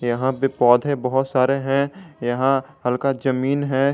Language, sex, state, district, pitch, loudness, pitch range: Hindi, male, Jharkhand, Garhwa, 135 Hz, -20 LUFS, 130-140 Hz